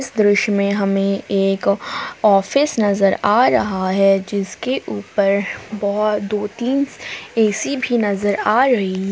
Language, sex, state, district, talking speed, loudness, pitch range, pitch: Hindi, female, Jharkhand, Palamu, 125 wpm, -18 LUFS, 195-215 Hz, 205 Hz